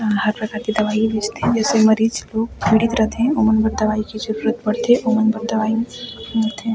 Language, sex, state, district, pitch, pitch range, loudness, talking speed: Chhattisgarhi, female, Chhattisgarh, Sarguja, 220 Hz, 215-225 Hz, -18 LUFS, 240 wpm